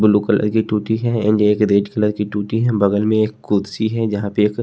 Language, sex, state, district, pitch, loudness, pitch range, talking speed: Hindi, male, Haryana, Charkhi Dadri, 105 Hz, -17 LUFS, 105-110 Hz, 260 wpm